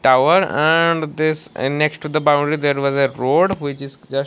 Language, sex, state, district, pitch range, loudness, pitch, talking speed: English, male, Odisha, Malkangiri, 140-155 Hz, -17 LUFS, 145 Hz, 225 wpm